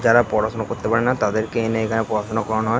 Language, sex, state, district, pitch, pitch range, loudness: Bengali, male, West Bengal, Jalpaiguri, 110 Hz, 110-115 Hz, -21 LUFS